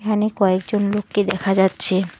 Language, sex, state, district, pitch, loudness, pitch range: Bengali, female, West Bengal, Alipurduar, 200 Hz, -18 LUFS, 190-210 Hz